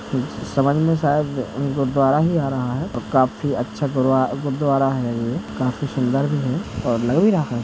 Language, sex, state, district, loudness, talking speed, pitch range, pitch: Hindi, male, Uttar Pradesh, Jalaun, -20 LUFS, 180 wpm, 125-145 Hz, 135 Hz